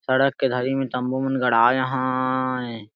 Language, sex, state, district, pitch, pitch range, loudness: Sadri, male, Chhattisgarh, Jashpur, 130 Hz, 125-130 Hz, -22 LUFS